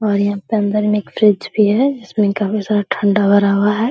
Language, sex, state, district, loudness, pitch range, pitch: Hindi, female, Bihar, Araria, -16 LUFS, 205-215 Hz, 210 Hz